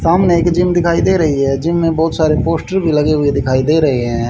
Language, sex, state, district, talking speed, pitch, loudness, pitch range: Hindi, male, Haryana, Jhajjar, 265 wpm, 160 Hz, -14 LUFS, 140-170 Hz